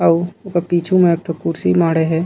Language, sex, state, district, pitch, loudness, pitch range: Chhattisgarhi, male, Chhattisgarh, Raigarh, 170 Hz, -17 LUFS, 165-175 Hz